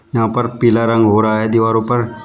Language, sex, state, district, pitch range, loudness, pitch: Hindi, male, Uttar Pradesh, Shamli, 110-120 Hz, -14 LUFS, 115 Hz